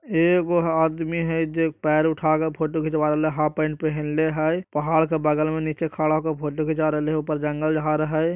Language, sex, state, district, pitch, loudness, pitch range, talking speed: Magahi, male, Bihar, Jahanabad, 155 Hz, -23 LUFS, 155-160 Hz, 235 wpm